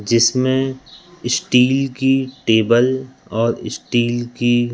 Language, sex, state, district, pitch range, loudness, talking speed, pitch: Hindi, male, Madhya Pradesh, Katni, 120-130 Hz, -17 LUFS, 90 wpm, 120 Hz